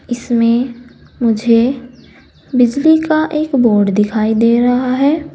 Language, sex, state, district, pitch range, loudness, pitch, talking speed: Hindi, female, Uttar Pradesh, Saharanpur, 230-270 Hz, -13 LUFS, 245 Hz, 110 wpm